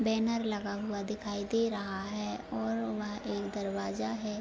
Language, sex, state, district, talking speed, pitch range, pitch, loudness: Hindi, female, Bihar, Darbhanga, 165 wpm, 195-215 Hz, 205 Hz, -35 LUFS